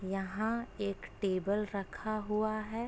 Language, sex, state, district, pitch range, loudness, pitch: Hindi, female, Uttar Pradesh, Etah, 195-215 Hz, -36 LUFS, 210 Hz